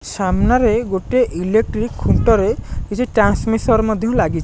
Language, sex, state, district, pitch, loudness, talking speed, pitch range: Odia, male, Odisha, Nuapada, 225 Hz, -17 LUFS, 120 wpm, 205-240 Hz